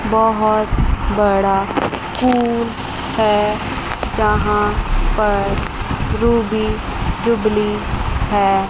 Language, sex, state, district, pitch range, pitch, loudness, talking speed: Hindi, female, Chandigarh, Chandigarh, 205-225 Hz, 215 Hz, -17 LUFS, 60 wpm